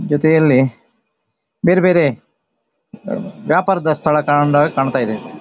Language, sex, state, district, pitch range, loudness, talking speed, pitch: Kannada, male, Karnataka, Shimoga, 145-170 Hz, -15 LUFS, 80 wpm, 150 Hz